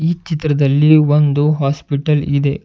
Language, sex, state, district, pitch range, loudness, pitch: Kannada, male, Karnataka, Bidar, 140-155 Hz, -14 LUFS, 150 Hz